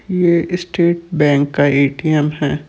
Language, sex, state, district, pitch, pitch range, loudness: Chhattisgarhi, male, Chhattisgarh, Sarguja, 155 Hz, 145-170 Hz, -15 LUFS